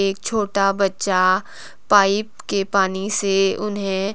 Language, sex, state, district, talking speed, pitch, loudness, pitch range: Hindi, female, Himachal Pradesh, Shimla, 115 wpm, 195 Hz, -19 LUFS, 195-205 Hz